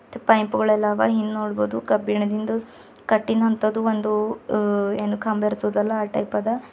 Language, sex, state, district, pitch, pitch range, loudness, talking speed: Kannada, female, Karnataka, Bidar, 215 Hz, 205-225 Hz, -22 LUFS, 125 wpm